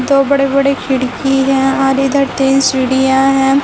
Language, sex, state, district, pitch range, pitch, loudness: Hindi, female, Chhattisgarh, Raipur, 265-275 Hz, 270 Hz, -12 LUFS